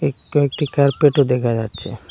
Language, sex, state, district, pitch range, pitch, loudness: Bengali, male, Assam, Hailakandi, 120-145 Hz, 135 Hz, -18 LUFS